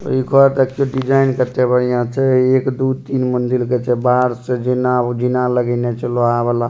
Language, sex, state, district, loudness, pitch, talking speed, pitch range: Maithili, male, Bihar, Supaul, -16 LUFS, 125 Hz, 190 wpm, 125-130 Hz